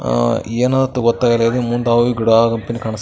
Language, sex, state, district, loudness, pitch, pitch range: Kannada, male, Karnataka, Bijapur, -16 LUFS, 115 Hz, 115-120 Hz